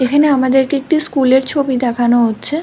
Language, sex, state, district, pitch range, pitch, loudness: Bengali, female, West Bengal, Dakshin Dinajpur, 255-290 Hz, 265 Hz, -13 LUFS